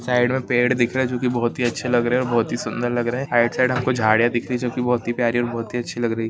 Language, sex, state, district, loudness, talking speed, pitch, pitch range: Hindi, male, Maharashtra, Solapur, -21 LUFS, 335 wpm, 120 Hz, 120-125 Hz